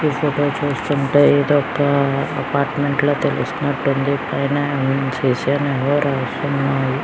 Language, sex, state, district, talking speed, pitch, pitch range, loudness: Telugu, male, Andhra Pradesh, Guntur, 75 wpm, 140 Hz, 135-145 Hz, -18 LUFS